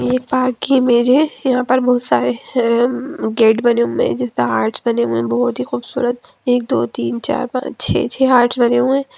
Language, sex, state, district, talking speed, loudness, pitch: Hindi, female, Bihar, Gaya, 230 wpm, -16 LUFS, 240 Hz